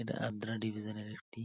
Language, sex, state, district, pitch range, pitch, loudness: Bengali, male, West Bengal, Purulia, 105-115 Hz, 110 Hz, -40 LUFS